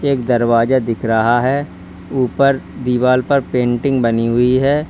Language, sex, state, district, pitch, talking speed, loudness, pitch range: Hindi, male, Uttar Pradesh, Lalitpur, 125 Hz, 145 wpm, -15 LUFS, 115-135 Hz